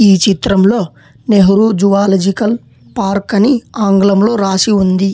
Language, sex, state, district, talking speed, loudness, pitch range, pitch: Telugu, male, Telangana, Hyderabad, 105 wpm, -11 LUFS, 195-215 Hz, 200 Hz